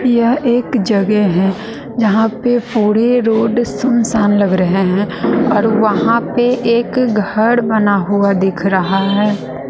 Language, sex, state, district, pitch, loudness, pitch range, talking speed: Hindi, female, Bihar, West Champaran, 220 Hz, -14 LUFS, 200-235 Hz, 135 wpm